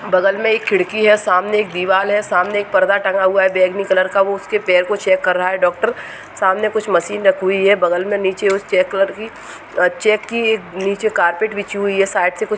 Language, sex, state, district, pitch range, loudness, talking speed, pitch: Hindi, male, Uttar Pradesh, Deoria, 185-210 Hz, -16 LUFS, 250 wpm, 195 Hz